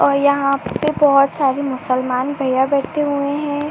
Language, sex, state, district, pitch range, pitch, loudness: Hindi, female, Uttar Pradesh, Ghazipur, 265-290 Hz, 280 Hz, -17 LUFS